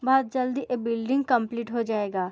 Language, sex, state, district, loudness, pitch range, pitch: Hindi, female, Uttar Pradesh, Muzaffarnagar, -26 LUFS, 230-260 Hz, 240 Hz